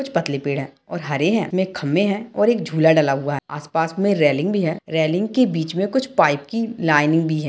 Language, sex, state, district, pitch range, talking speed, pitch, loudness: Hindi, male, Bihar, Darbhanga, 150-200 Hz, 255 wpm, 165 Hz, -20 LUFS